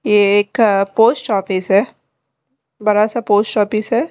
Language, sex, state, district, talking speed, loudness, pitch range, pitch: Hindi, female, Delhi, New Delhi, 115 wpm, -15 LUFS, 195-225 Hz, 210 Hz